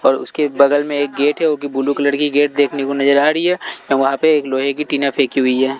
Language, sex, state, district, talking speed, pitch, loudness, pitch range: Hindi, male, Delhi, New Delhi, 300 wpm, 145 Hz, -16 LUFS, 140-150 Hz